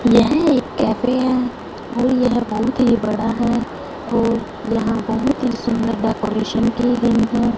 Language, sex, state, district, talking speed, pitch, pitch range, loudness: Hindi, female, Punjab, Fazilka, 140 wpm, 235 Hz, 225-250 Hz, -18 LUFS